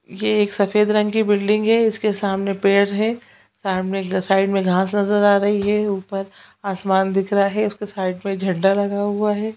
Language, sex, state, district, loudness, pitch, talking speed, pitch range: Hindi, female, Chhattisgarh, Sukma, -19 LUFS, 200 Hz, 200 wpm, 195-210 Hz